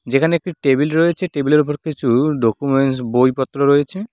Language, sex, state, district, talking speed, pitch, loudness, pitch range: Bengali, male, West Bengal, Cooch Behar, 160 wpm, 145 Hz, -17 LUFS, 135-160 Hz